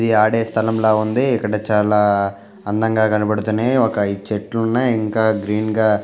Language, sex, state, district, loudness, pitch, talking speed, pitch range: Telugu, male, Telangana, Nalgonda, -18 LUFS, 110 Hz, 140 wpm, 105-110 Hz